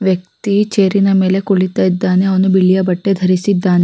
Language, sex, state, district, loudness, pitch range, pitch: Kannada, female, Karnataka, Raichur, -13 LUFS, 185-195 Hz, 190 Hz